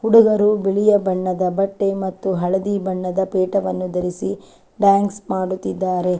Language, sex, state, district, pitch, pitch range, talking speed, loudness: Kannada, female, Karnataka, Chamarajanagar, 190 Hz, 185-200 Hz, 105 wpm, -19 LUFS